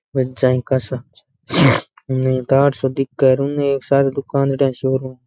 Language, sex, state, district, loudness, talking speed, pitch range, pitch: Rajasthani, male, Rajasthan, Nagaur, -17 LUFS, 135 wpm, 130-140 Hz, 135 Hz